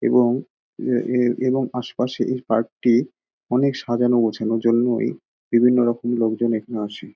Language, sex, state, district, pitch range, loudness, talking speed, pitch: Bengali, male, West Bengal, Dakshin Dinajpur, 115-125 Hz, -21 LUFS, 135 wpm, 120 Hz